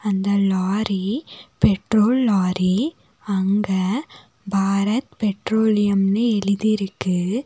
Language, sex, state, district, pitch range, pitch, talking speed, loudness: Tamil, female, Tamil Nadu, Nilgiris, 195-220 Hz, 200 Hz, 65 wpm, -20 LUFS